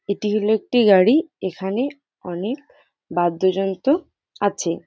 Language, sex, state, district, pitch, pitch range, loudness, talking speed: Bengali, female, West Bengal, Jhargram, 205 Hz, 185-245 Hz, -20 LUFS, 110 wpm